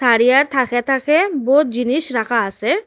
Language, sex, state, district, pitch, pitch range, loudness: Bengali, female, Assam, Hailakandi, 260 Hz, 240-285 Hz, -16 LUFS